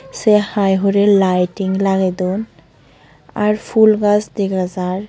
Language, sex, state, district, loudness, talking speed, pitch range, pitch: Chakma, female, Tripura, Unakoti, -15 LUFS, 130 wpm, 185-210 Hz, 195 Hz